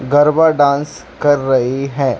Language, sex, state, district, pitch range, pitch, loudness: Hindi, male, Jharkhand, Jamtara, 135-145 Hz, 140 Hz, -14 LUFS